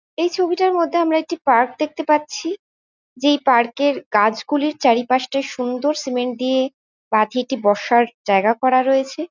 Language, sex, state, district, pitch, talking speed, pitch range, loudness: Bengali, female, West Bengal, Jhargram, 265 Hz, 140 wpm, 245-305 Hz, -19 LUFS